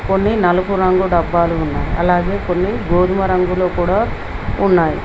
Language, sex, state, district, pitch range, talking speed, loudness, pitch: Telugu, female, Telangana, Mahabubabad, 175-190 Hz, 130 wpm, -16 LUFS, 180 Hz